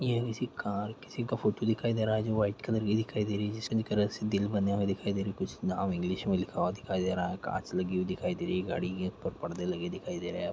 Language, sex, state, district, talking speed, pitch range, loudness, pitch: Hindi, male, Chhattisgarh, Jashpur, 300 wpm, 100-115 Hz, -32 LUFS, 105 Hz